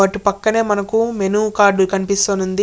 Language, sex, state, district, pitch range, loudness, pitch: Telugu, male, Andhra Pradesh, Chittoor, 195-215 Hz, -16 LUFS, 200 Hz